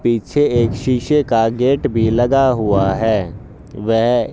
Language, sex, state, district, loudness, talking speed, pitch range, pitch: Hindi, male, Haryana, Jhajjar, -16 LUFS, 150 wpm, 110-130 Hz, 115 Hz